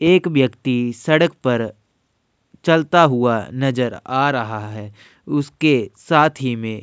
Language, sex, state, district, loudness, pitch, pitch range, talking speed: Hindi, male, Uttar Pradesh, Jyotiba Phule Nagar, -18 LUFS, 130 Hz, 115-150 Hz, 130 wpm